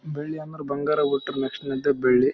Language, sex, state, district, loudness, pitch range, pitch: Kannada, male, Karnataka, Raichur, -25 LUFS, 135-150 Hz, 140 Hz